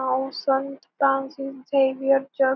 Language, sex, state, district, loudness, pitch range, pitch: Marathi, female, Maharashtra, Pune, -23 LUFS, 265-275 Hz, 270 Hz